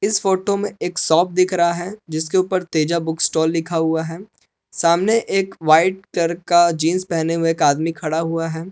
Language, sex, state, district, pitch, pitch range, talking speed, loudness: Hindi, male, Jharkhand, Palamu, 170 Hz, 160-185 Hz, 200 wpm, -19 LUFS